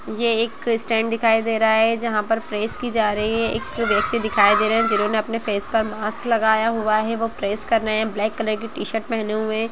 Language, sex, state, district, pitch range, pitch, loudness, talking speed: Kumaoni, female, Uttarakhand, Uttarkashi, 215-230 Hz, 225 Hz, -20 LUFS, 240 wpm